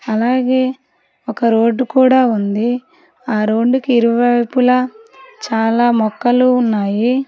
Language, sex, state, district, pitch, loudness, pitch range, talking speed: Telugu, female, Telangana, Hyderabad, 245 Hz, -15 LUFS, 225-255 Hz, 90 wpm